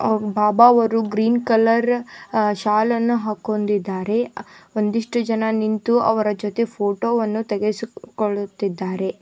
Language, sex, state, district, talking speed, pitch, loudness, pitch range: Kannada, female, Karnataka, Koppal, 105 wpm, 220 Hz, -20 LUFS, 210-230 Hz